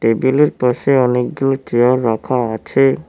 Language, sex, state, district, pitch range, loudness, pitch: Bengali, male, West Bengal, Cooch Behar, 120-135 Hz, -15 LUFS, 125 Hz